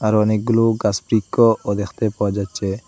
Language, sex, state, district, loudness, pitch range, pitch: Bengali, male, Assam, Hailakandi, -19 LUFS, 100-115 Hz, 105 Hz